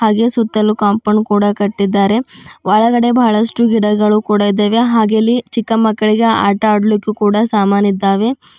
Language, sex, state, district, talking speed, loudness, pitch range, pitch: Kannada, female, Karnataka, Bidar, 125 wpm, -13 LUFS, 205-225 Hz, 215 Hz